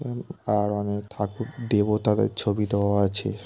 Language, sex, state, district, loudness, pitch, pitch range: Bengali, male, West Bengal, Kolkata, -25 LUFS, 105 Hz, 100-115 Hz